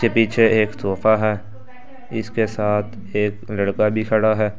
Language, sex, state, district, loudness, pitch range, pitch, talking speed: Hindi, male, Delhi, New Delhi, -20 LUFS, 105-110 Hz, 110 Hz, 155 wpm